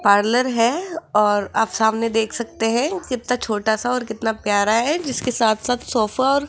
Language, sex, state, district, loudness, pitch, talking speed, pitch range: Hindi, female, Rajasthan, Jaipur, -20 LUFS, 230 Hz, 195 wpm, 220-250 Hz